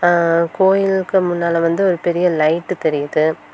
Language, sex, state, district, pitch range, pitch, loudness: Tamil, female, Tamil Nadu, Kanyakumari, 165-185 Hz, 175 Hz, -16 LUFS